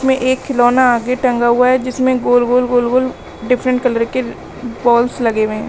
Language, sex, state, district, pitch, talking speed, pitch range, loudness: Hindi, female, Uttar Pradesh, Lalitpur, 250 Hz, 200 wpm, 240-255 Hz, -14 LUFS